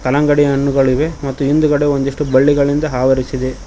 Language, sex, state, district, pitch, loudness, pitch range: Kannada, male, Karnataka, Koppal, 140 Hz, -14 LUFS, 130-145 Hz